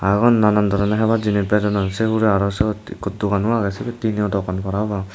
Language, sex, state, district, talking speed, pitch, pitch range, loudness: Chakma, male, Tripura, Dhalai, 220 wpm, 105 Hz, 100-110 Hz, -19 LUFS